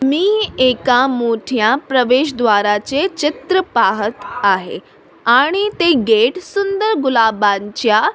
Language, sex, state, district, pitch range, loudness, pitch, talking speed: Marathi, female, Maharashtra, Sindhudurg, 225-345 Hz, -15 LUFS, 260 Hz, 105 wpm